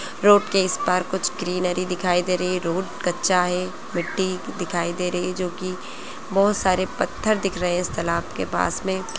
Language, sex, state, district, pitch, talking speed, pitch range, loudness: Hindi, female, Chhattisgarh, Bastar, 180 Hz, 200 wpm, 180-190 Hz, -23 LUFS